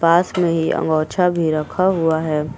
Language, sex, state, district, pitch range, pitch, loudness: Hindi, female, Uttar Pradesh, Lucknow, 155-175 Hz, 165 Hz, -18 LUFS